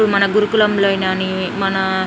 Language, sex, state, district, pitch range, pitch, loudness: Telugu, female, Telangana, Nalgonda, 190-205 Hz, 195 Hz, -16 LUFS